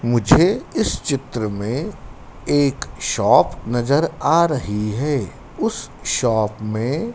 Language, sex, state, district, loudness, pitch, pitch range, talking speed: Hindi, male, Madhya Pradesh, Dhar, -19 LUFS, 120 Hz, 110-145 Hz, 110 wpm